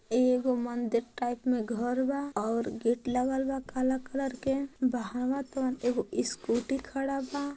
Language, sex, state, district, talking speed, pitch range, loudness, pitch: Hindi, female, Uttar Pradesh, Gorakhpur, 150 wpm, 240-270 Hz, -31 LUFS, 255 Hz